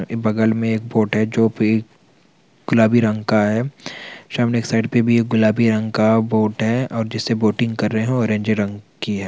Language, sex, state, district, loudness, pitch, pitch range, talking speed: Hindi, male, Chhattisgarh, Bastar, -18 LUFS, 110 Hz, 110-115 Hz, 215 wpm